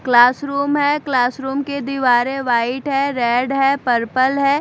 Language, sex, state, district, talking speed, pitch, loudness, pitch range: Hindi, female, Bihar, Katihar, 145 wpm, 270 Hz, -17 LUFS, 245-280 Hz